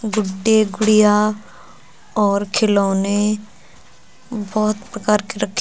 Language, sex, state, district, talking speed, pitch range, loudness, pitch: Hindi, female, Uttar Pradesh, Lucknow, 95 wpm, 205-215 Hz, -18 LUFS, 210 Hz